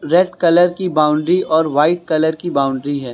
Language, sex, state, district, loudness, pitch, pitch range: Hindi, male, Uttar Pradesh, Lucknow, -15 LUFS, 160 Hz, 150-175 Hz